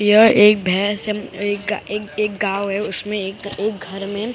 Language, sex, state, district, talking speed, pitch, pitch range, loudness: Hindi, female, Maharashtra, Mumbai Suburban, 220 wpm, 205 Hz, 200-210 Hz, -19 LUFS